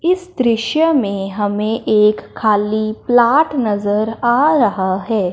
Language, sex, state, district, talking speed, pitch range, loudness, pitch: Hindi, male, Punjab, Fazilka, 125 wpm, 210-260 Hz, -15 LUFS, 220 Hz